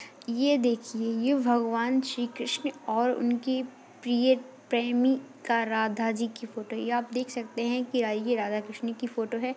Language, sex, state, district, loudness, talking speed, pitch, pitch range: Hindi, female, Chhattisgarh, Sarguja, -28 LUFS, 175 wpm, 240 Hz, 230-255 Hz